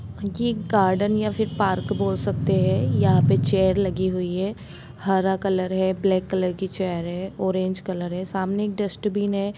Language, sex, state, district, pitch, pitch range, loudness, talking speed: Hindi, female, Jharkhand, Jamtara, 190 Hz, 180-200 Hz, -23 LUFS, 170 wpm